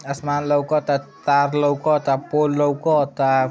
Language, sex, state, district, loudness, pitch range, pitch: Bhojpuri, male, Uttar Pradesh, Ghazipur, -20 LUFS, 140-145 Hz, 145 Hz